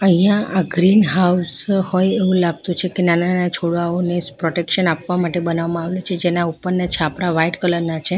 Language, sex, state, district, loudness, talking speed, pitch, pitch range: Gujarati, female, Gujarat, Valsad, -18 LUFS, 175 wpm, 175 Hz, 170-185 Hz